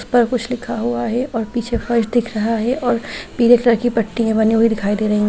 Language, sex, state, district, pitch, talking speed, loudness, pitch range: Hindi, female, Bihar, Saran, 235 Hz, 250 wpm, -17 LUFS, 225-240 Hz